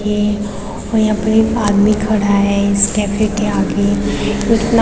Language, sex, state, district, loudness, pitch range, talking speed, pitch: Hindi, female, Uttarakhand, Tehri Garhwal, -15 LUFS, 200-215 Hz, 160 wpm, 210 Hz